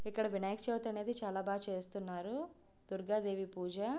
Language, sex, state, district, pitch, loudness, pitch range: Telugu, female, Andhra Pradesh, Visakhapatnam, 200 Hz, -40 LUFS, 195-220 Hz